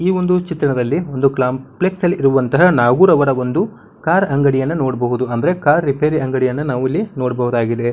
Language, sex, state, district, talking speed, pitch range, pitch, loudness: Kannada, male, Karnataka, Bijapur, 135 wpm, 125-170 Hz, 135 Hz, -16 LUFS